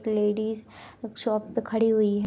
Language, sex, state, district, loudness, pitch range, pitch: Hindi, female, Bihar, East Champaran, -26 LUFS, 215-225 Hz, 220 Hz